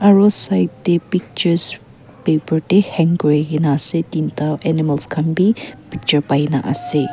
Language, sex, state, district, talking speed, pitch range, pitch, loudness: Nagamese, female, Nagaland, Kohima, 135 wpm, 145-175 Hz, 155 Hz, -16 LUFS